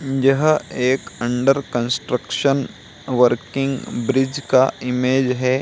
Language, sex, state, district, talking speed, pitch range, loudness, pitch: Hindi, male, Bihar, Samastipur, 95 wpm, 125-135 Hz, -19 LUFS, 130 Hz